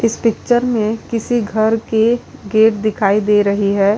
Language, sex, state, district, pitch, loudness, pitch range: Hindi, female, Uttar Pradesh, Lalitpur, 220 Hz, -16 LUFS, 210-230 Hz